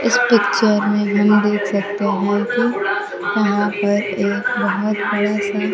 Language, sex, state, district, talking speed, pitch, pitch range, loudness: Hindi, female, Bihar, Kaimur, 145 wpm, 205 Hz, 205-210 Hz, -17 LUFS